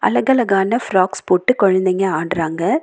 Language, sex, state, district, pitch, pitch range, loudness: Tamil, female, Tamil Nadu, Nilgiris, 195 Hz, 180-235 Hz, -16 LUFS